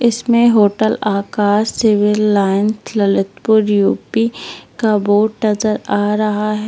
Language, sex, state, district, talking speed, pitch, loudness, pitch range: Hindi, female, Uttar Pradesh, Lalitpur, 115 wpm, 215 Hz, -15 LUFS, 205-220 Hz